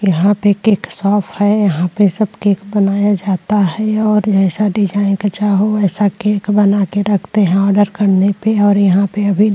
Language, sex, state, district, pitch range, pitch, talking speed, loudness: Hindi, female, Uttar Pradesh, Jyotiba Phule Nagar, 195-210 Hz, 205 Hz, 180 wpm, -14 LUFS